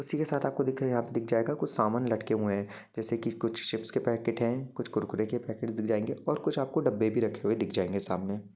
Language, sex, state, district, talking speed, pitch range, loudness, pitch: Hindi, male, Jharkhand, Jamtara, 250 wpm, 110-120 Hz, -31 LUFS, 115 Hz